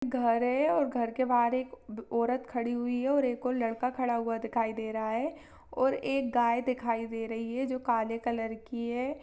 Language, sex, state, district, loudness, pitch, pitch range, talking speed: Hindi, female, Chhattisgarh, Sarguja, -31 LUFS, 240 Hz, 230-255 Hz, 220 wpm